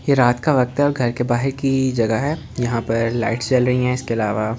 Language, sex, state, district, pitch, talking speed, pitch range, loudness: Hindi, male, Delhi, New Delhi, 125 Hz, 275 wpm, 115-135 Hz, -19 LUFS